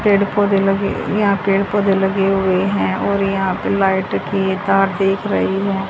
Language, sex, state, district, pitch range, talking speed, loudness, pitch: Hindi, female, Haryana, Charkhi Dadri, 195-200 Hz, 195 wpm, -17 LUFS, 195 Hz